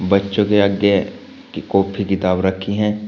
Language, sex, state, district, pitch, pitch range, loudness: Hindi, male, Uttar Pradesh, Shamli, 100 Hz, 95-105 Hz, -17 LUFS